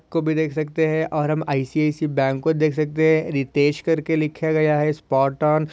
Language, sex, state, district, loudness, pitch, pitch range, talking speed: Hindi, male, Maharashtra, Solapur, -21 LUFS, 155 Hz, 150-160 Hz, 220 wpm